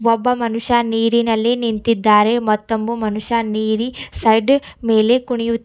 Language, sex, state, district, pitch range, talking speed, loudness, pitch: Kannada, female, Karnataka, Bidar, 220-235 Hz, 105 wpm, -17 LUFS, 230 Hz